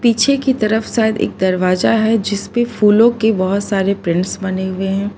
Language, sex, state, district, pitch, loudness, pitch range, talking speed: Hindi, female, Gujarat, Valsad, 205 Hz, -15 LUFS, 190-225 Hz, 185 wpm